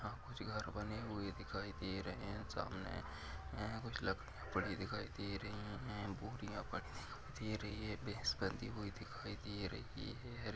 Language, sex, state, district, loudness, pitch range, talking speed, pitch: Hindi, male, Maharashtra, Aurangabad, -46 LUFS, 95-110 Hz, 170 wpm, 105 Hz